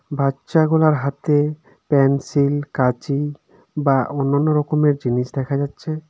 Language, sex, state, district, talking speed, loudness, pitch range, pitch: Bengali, male, West Bengal, Darjeeling, 100 wpm, -19 LUFS, 140-150 Hz, 140 Hz